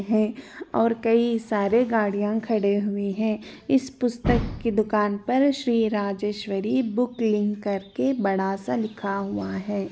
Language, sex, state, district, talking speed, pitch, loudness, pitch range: Hindi, female, Chhattisgarh, Jashpur, 140 wpm, 215 Hz, -24 LUFS, 200-235 Hz